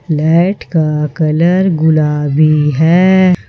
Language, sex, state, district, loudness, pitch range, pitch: Hindi, female, Jharkhand, Ranchi, -11 LUFS, 150-180 Hz, 160 Hz